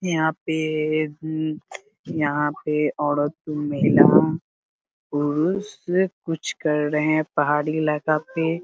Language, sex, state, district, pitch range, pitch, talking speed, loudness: Hindi, male, Bihar, Muzaffarpur, 150-165 Hz, 155 Hz, 110 wpm, -22 LUFS